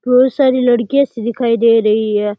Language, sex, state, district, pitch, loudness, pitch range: Rajasthani, male, Rajasthan, Nagaur, 235 Hz, -13 LUFS, 220-255 Hz